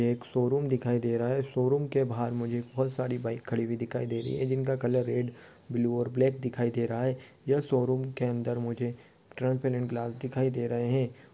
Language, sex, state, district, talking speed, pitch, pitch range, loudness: Hindi, male, Telangana, Nalgonda, 215 wpm, 125 Hz, 120-130 Hz, -30 LUFS